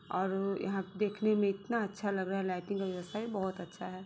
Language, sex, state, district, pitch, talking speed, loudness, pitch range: Hindi, female, Bihar, Sitamarhi, 195 Hz, 220 wpm, -35 LUFS, 185-205 Hz